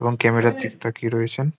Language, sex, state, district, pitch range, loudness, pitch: Bengali, male, West Bengal, Jhargram, 115-120 Hz, -22 LUFS, 115 Hz